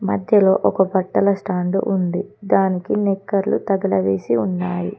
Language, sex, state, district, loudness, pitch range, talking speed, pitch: Telugu, female, Telangana, Komaram Bheem, -19 LUFS, 120-195 Hz, 110 wpm, 190 Hz